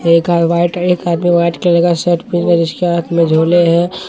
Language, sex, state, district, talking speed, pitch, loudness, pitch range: Hindi, male, Bihar, Katihar, 220 wpm, 170 Hz, -13 LUFS, 170-175 Hz